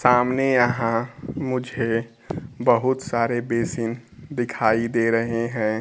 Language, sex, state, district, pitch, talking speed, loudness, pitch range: Hindi, male, Bihar, Kaimur, 115 Hz, 105 wpm, -23 LUFS, 115-125 Hz